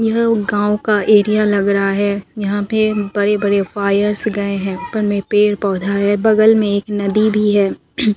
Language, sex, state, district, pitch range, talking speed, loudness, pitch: Hindi, female, Bihar, Katihar, 200-215 Hz, 185 wpm, -15 LUFS, 205 Hz